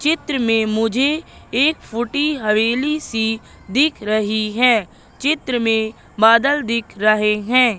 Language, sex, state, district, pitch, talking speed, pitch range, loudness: Hindi, female, Madhya Pradesh, Katni, 235 Hz, 125 wpm, 220-285 Hz, -18 LUFS